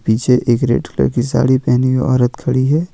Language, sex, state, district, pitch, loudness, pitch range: Hindi, male, Jharkhand, Ranchi, 125 Hz, -15 LUFS, 120-130 Hz